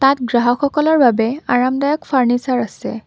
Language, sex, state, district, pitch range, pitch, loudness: Assamese, female, Assam, Kamrup Metropolitan, 240-280 Hz, 255 Hz, -16 LUFS